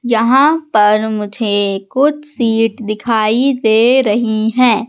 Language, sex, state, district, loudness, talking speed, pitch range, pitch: Hindi, female, Madhya Pradesh, Katni, -13 LUFS, 110 wpm, 215-250 Hz, 225 Hz